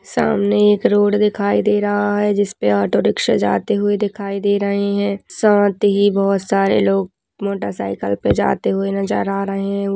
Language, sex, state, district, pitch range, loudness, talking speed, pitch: Hindi, female, Uttar Pradesh, Budaun, 195-205 Hz, -17 LUFS, 185 wpm, 200 Hz